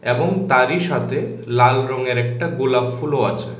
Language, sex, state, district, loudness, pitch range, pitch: Bengali, male, Tripura, West Tripura, -19 LUFS, 120-130 Hz, 125 Hz